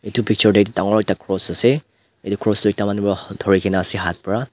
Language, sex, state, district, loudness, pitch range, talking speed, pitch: Nagamese, male, Nagaland, Dimapur, -19 LUFS, 95-110 Hz, 240 wpm, 100 Hz